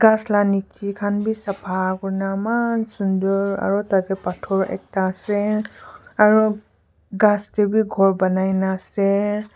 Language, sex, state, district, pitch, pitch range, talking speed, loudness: Nagamese, female, Nagaland, Kohima, 200 Hz, 195-210 Hz, 145 wpm, -20 LUFS